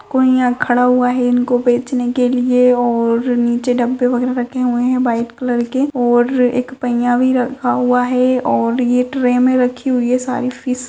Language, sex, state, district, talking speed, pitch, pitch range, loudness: Hindi, female, Rajasthan, Churu, 200 wpm, 250 Hz, 245-255 Hz, -15 LUFS